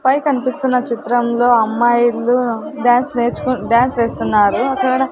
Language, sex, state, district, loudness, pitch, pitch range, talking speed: Telugu, female, Andhra Pradesh, Sri Satya Sai, -15 LUFS, 245 Hz, 235-255 Hz, 105 wpm